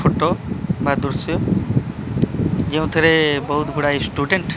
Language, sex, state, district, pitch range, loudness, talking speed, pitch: Odia, male, Odisha, Malkangiri, 145-160 Hz, -19 LUFS, 120 wpm, 150 Hz